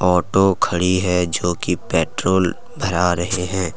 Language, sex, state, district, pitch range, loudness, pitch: Hindi, male, Jharkhand, Deoghar, 90-95 Hz, -19 LUFS, 90 Hz